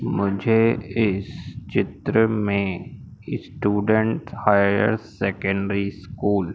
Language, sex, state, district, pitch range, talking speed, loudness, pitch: Hindi, male, Madhya Pradesh, Umaria, 100-110 Hz, 85 wpm, -22 LUFS, 105 Hz